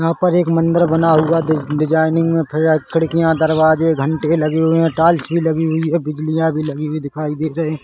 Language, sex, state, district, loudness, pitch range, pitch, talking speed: Hindi, male, Chhattisgarh, Rajnandgaon, -16 LUFS, 155-165 Hz, 160 Hz, 230 wpm